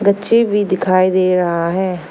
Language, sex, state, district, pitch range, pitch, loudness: Hindi, female, Arunachal Pradesh, Lower Dibang Valley, 180-200 Hz, 185 Hz, -15 LUFS